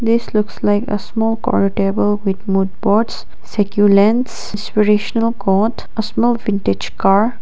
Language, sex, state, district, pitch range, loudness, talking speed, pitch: English, female, Nagaland, Kohima, 200-225 Hz, -16 LUFS, 145 wpm, 210 Hz